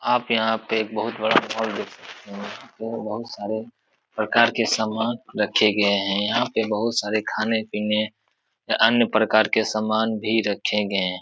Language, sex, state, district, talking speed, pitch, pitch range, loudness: Hindi, male, Uttar Pradesh, Etah, 175 wpm, 110 Hz, 105-110 Hz, -22 LUFS